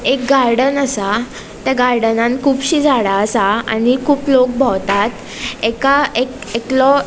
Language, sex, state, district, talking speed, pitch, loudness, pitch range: Konkani, female, Goa, North and South Goa, 145 wpm, 250 Hz, -15 LUFS, 225-270 Hz